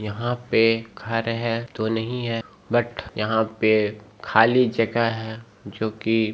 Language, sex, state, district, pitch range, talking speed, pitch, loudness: Hindi, male, Bihar, Begusarai, 110-115 Hz, 140 wpm, 115 Hz, -23 LUFS